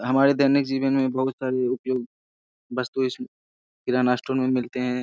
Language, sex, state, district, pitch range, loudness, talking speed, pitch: Hindi, male, Bihar, Jamui, 125-130 Hz, -24 LUFS, 180 wpm, 125 Hz